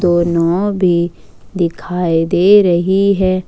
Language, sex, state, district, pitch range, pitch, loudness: Hindi, female, Jharkhand, Ranchi, 170-190 Hz, 180 Hz, -14 LUFS